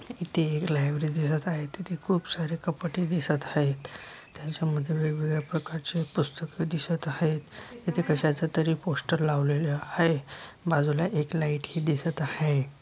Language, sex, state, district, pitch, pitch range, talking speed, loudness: Marathi, male, Maharashtra, Dhule, 155 Hz, 150-165 Hz, 135 wpm, -29 LUFS